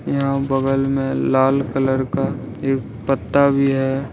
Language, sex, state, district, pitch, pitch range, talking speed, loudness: Hindi, male, Jharkhand, Ranchi, 135 Hz, 130-135 Hz, 145 wpm, -19 LUFS